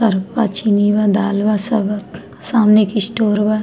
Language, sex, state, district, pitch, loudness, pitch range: Bhojpuri, female, Bihar, East Champaran, 210 Hz, -15 LUFS, 205-215 Hz